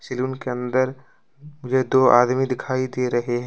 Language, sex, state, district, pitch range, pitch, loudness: Hindi, male, Jharkhand, Deoghar, 125-130 Hz, 130 Hz, -21 LUFS